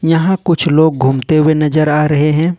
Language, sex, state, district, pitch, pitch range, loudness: Hindi, male, Jharkhand, Ranchi, 155 Hz, 150-165 Hz, -12 LUFS